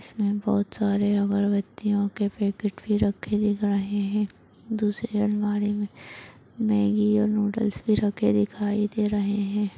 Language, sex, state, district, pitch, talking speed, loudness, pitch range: Hindi, female, Chhattisgarh, Bastar, 205 Hz, 140 wpm, -25 LUFS, 205-210 Hz